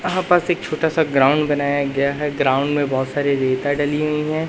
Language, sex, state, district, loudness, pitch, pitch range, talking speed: Hindi, male, Madhya Pradesh, Katni, -19 LUFS, 145 Hz, 140-155 Hz, 225 wpm